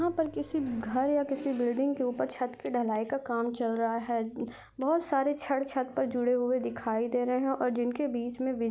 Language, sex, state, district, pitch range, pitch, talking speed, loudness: Hindi, female, Chhattisgarh, Rajnandgaon, 240-275 Hz, 250 Hz, 235 wpm, -31 LUFS